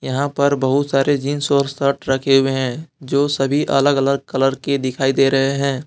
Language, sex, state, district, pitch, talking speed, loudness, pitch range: Hindi, male, Jharkhand, Deoghar, 140 Hz, 205 wpm, -18 LUFS, 135-140 Hz